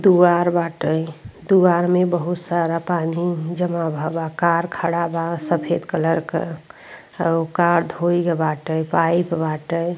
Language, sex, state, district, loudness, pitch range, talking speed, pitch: Bhojpuri, female, Uttar Pradesh, Ghazipur, -20 LUFS, 165-175 Hz, 140 wpm, 170 Hz